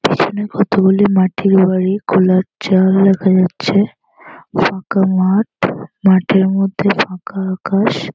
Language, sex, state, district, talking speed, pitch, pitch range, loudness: Bengali, female, West Bengal, North 24 Parganas, 105 wpm, 195 Hz, 185-200 Hz, -14 LUFS